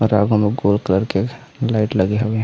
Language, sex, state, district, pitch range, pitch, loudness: Chhattisgarhi, male, Chhattisgarh, Raigarh, 100-110 Hz, 110 Hz, -18 LUFS